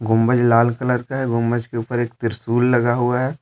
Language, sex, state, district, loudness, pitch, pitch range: Hindi, male, Jharkhand, Deoghar, -19 LUFS, 120 Hz, 115-125 Hz